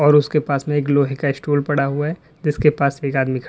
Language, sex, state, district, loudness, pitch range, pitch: Hindi, male, Uttar Pradesh, Lalitpur, -19 LUFS, 140-150 Hz, 145 Hz